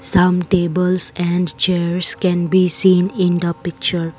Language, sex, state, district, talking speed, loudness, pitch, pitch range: English, female, Assam, Kamrup Metropolitan, 145 wpm, -16 LUFS, 180 Hz, 175-185 Hz